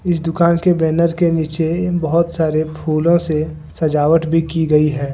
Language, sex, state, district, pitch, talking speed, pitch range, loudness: Hindi, male, Jharkhand, Deoghar, 160 Hz, 165 wpm, 155-170 Hz, -16 LUFS